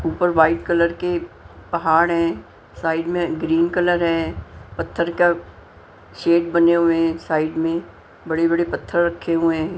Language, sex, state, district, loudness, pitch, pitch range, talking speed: Hindi, female, Punjab, Pathankot, -20 LUFS, 165 Hz, 160-170 Hz, 145 wpm